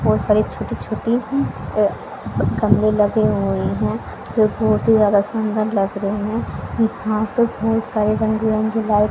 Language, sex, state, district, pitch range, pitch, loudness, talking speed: Hindi, female, Haryana, Charkhi Dadri, 210-225 Hz, 215 Hz, -19 LUFS, 165 wpm